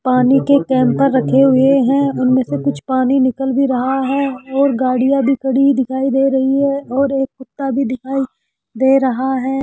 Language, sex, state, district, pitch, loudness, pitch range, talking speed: Hindi, male, Rajasthan, Jaipur, 265 Hz, -15 LUFS, 260-270 Hz, 185 wpm